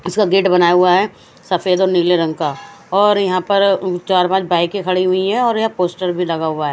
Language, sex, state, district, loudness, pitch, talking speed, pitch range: Hindi, female, Punjab, Fazilka, -15 LUFS, 185 Hz, 230 wpm, 175-195 Hz